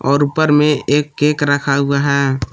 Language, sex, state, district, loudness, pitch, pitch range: Hindi, male, Jharkhand, Palamu, -15 LUFS, 145 Hz, 140-150 Hz